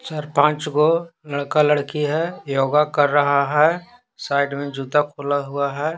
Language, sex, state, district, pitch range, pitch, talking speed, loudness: Hindi, male, Bihar, Patna, 140-155 Hz, 150 Hz, 150 wpm, -20 LUFS